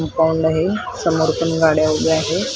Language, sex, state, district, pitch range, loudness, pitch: Marathi, female, Maharashtra, Mumbai Suburban, 160-165 Hz, -17 LUFS, 160 Hz